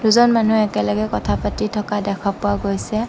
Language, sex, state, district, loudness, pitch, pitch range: Assamese, female, Assam, Sonitpur, -19 LUFS, 205 Hz, 170-220 Hz